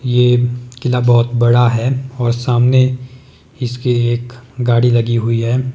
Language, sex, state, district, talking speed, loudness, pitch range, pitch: Hindi, male, Himachal Pradesh, Shimla, 135 wpm, -15 LUFS, 120-125 Hz, 125 Hz